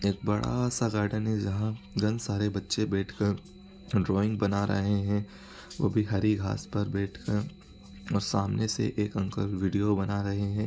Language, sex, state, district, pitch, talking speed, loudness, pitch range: Hindi, male, Bihar, East Champaran, 105 Hz, 165 wpm, -29 LUFS, 100-110 Hz